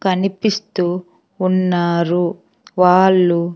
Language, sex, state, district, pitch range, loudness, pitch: Telugu, female, Andhra Pradesh, Sri Satya Sai, 175-190 Hz, -16 LUFS, 180 Hz